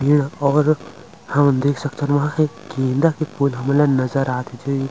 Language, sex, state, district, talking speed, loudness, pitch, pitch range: Chhattisgarhi, male, Chhattisgarh, Rajnandgaon, 210 wpm, -19 LUFS, 140 Hz, 135-145 Hz